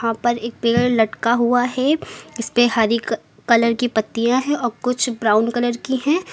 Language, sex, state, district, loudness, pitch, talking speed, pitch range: Hindi, female, Uttar Pradesh, Lucknow, -19 LUFS, 235 Hz, 190 wpm, 230-245 Hz